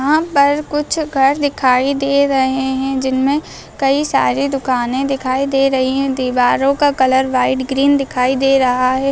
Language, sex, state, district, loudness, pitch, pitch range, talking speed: Hindi, female, Andhra Pradesh, Anantapur, -15 LUFS, 270 Hz, 260-280 Hz, 165 wpm